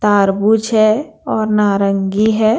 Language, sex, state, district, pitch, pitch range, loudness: Hindi, female, Bihar, Patna, 215 Hz, 200-220 Hz, -14 LUFS